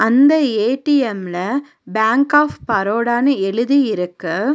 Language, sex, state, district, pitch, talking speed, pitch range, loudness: Tamil, female, Tamil Nadu, Nilgiris, 240 Hz, 105 wpm, 215-280 Hz, -17 LUFS